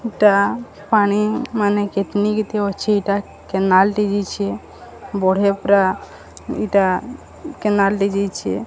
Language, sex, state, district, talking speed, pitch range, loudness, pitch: Odia, female, Odisha, Sambalpur, 110 wpm, 195-210 Hz, -18 LUFS, 200 Hz